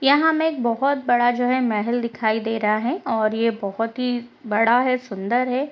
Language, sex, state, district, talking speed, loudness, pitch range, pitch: Hindi, female, Bihar, East Champaran, 210 wpm, -21 LUFS, 225-255 Hz, 240 Hz